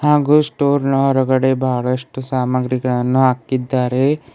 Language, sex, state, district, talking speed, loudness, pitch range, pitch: Kannada, male, Karnataka, Bidar, 95 wpm, -17 LUFS, 125-135 Hz, 130 Hz